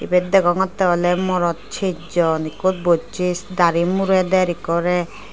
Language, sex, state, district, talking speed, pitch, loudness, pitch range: Chakma, female, Tripura, Dhalai, 125 wpm, 180 Hz, -19 LUFS, 170-185 Hz